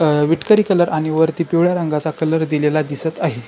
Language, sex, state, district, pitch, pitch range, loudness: Marathi, male, Maharashtra, Chandrapur, 160 Hz, 150-170 Hz, -17 LUFS